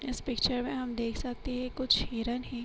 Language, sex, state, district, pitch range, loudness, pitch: Hindi, female, Jharkhand, Jamtara, 240-255 Hz, -32 LUFS, 250 Hz